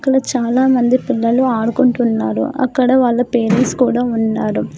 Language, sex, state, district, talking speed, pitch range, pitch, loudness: Telugu, female, Telangana, Hyderabad, 115 wpm, 230-255 Hz, 245 Hz, -15 LUFS